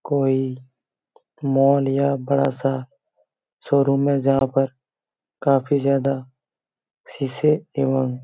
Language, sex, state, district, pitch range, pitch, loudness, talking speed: Hindi, male, Chhattisgarh, Bastar, 130-140 Hz, 135 Hz, -21 LUFS, 95 wpm